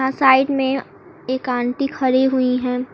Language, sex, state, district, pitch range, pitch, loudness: Hindi, female, Uttar Pradesh, Lucknow, 255-265 Hz, 260 Hz, -18 LUFS